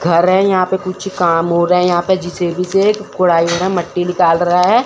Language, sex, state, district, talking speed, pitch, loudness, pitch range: Hindi, male, Chandigarh, Chandigarh, 285 wpm, 180 Hz, -14 LUFS, 175-190 Hz